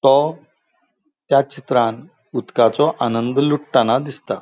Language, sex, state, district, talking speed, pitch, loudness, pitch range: Konkani, male, Goa, North and South Goa, 95 wpm, 135 Hz, -18 LUFS, 120-145 Hz